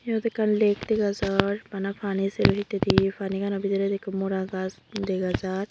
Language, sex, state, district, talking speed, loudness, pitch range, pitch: Chakma, female, Tripura, Unakoti, 170 wpm, -26 LUFS, 195-205 Hz, 195 Hz